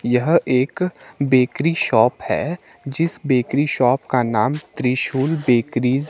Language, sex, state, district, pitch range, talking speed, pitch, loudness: Hindi, male, Himachal Pradesh, Shimla, 125-155 Hz, 130 wpm, 130 Hz, -19 LUFS